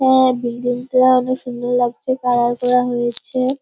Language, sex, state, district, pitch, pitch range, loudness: Bengali, female, West Bengal, Purulia, 250 Hz, 245-255 Hz, -17 LUFS